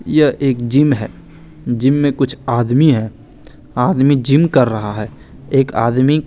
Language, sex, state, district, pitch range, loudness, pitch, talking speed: Hindi, male, Chandigarh, Chandigarh, 120-145 Hz, -15 LUFS, 135 Hz, 155 wpm